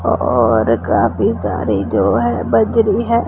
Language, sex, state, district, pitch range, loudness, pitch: Hindi, female, Punjab, Pathankot, 100-120 Hz, -15 LUFS, 110 Hz